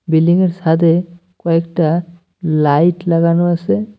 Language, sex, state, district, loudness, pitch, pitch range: Bengali, male, West Bengal, Cooch Behar, -14 LUFS, 170 Hz, 165-175 Hz